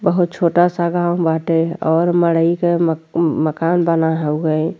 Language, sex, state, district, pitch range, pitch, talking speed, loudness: Bhojpuri, female, Uttar Pradesh, Deoria, 160-175 Hz, 170 Hz, 150 wpm, -17 LUFS